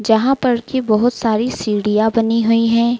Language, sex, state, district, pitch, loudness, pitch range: Hindi, female, Madhya Pradesh, Dhar, 230 Hz, -16 LUFS, 220-240 Hz